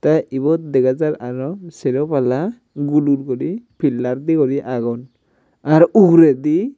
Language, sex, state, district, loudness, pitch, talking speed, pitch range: Chakma, male, Tripura, Unakoti, -17 LUFS, 145 Hz, 140 wpm, 130-165 Hz